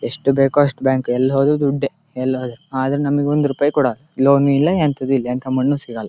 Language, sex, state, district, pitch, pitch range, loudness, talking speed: Kannada, male, Karnataka, Shimoga, 135 Hz, 130-145 Hz, -18 LUFS, 165 wpm